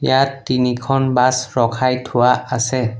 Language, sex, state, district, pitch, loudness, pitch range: Assamese, male, Assam, Sonitpur, 125 Hz, -17 LUFS, 125-130 Hz